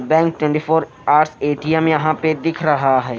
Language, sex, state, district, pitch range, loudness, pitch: Hindi, male, Himachal Pradesh, Shimla, 145-160 Hz, -17 LUFS, 155 Hz